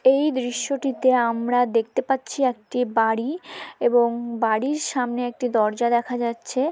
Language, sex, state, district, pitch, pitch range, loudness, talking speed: Bengali, female, West Bengal, Malda, 245 Hz, 235-260 Hz, -22 LUFS, 125 wpm